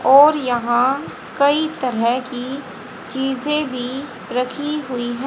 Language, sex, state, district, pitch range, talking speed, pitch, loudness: Hindi, female, Haryana, Charkhi Dadri, 250-280 Hz, 115 wpm, 265 Hz, -19 LUFS